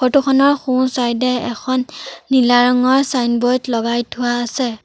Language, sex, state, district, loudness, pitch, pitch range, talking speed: Assamese, female, Assam, Sonitpur, -16 LUFS, 250 Hz, 240-260 Hz, 150 wpm